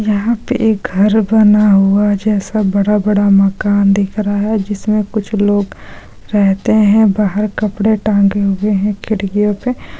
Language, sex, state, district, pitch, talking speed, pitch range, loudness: Hindi, female, Bihar, Supaul, 210 Hz, 145 wpm, 200-215 Hz, -13 LUFS